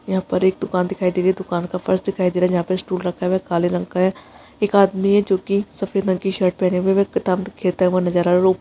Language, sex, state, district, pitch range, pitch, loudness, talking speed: Hindi, female, Bihar, Araria, 180-195 Hz, 185 Hz, -19 LUFS, 325 wpm